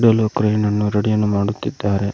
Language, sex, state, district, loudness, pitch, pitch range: Kannada, male, Karnataka, Koppal, -18 LUFS, 105 Hz, 100-105 Hz